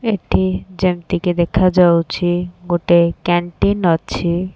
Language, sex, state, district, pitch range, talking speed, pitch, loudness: Odia, female, Odisha, Khordha, 170-180 Hz, 80 wpm, 175 Hz, -16 LUFS